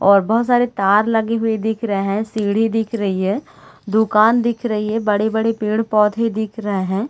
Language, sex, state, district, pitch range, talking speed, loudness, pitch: Hindi, female, Chhattisgarh, Raigarh, 205-225 Hz, 185 wpm, -18 LUFS, 220 Hz